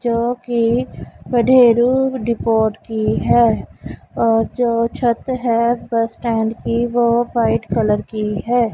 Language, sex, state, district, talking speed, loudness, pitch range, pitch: Hindi, female, Punjab, Pathankot, 115 wpm, -17 LUFS, 225-240 Hz, 235 Hz